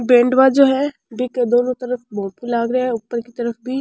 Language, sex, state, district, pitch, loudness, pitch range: Rajasthani, female, Rajasthan, Churu, 245 Hz, -18 LUFS, 235-255 Hz